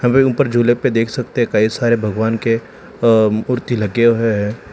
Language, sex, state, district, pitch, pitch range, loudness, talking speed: Hindi, male, Telangana, Hyderabad, 115 Hz, 110-120 Hz, -16 LUFS, 215 wpm